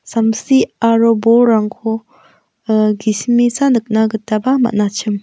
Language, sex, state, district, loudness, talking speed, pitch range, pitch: Garo, female, Meghalaya, West Garo Hills, -14 LUFS, 90 wpm, 215-240 Hz, 225 Hz